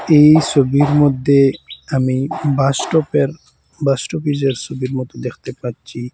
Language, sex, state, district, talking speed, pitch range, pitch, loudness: Bengali, male, Assam, Hailakandi, 110 wpm, 130-150 Hz, 140 Hz, -16 LUFS